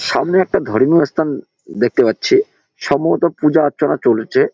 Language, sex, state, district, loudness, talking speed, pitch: Bengali, male, West Bengal, Jalpaiguri, -15 LUFS, 130 wpm, 195 Hz